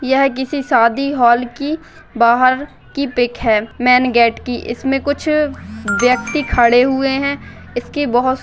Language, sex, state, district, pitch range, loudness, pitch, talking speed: Hindi, female, Bihar, Bhagalpur, 240-280 Hz, -15 LUFS, 255 Hz, 150 wpm